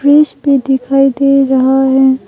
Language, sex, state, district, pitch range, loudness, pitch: Hindi, female, Arunachal Pradesh, Longding, 265-275 Hz, -10 LUFS, 270 Hz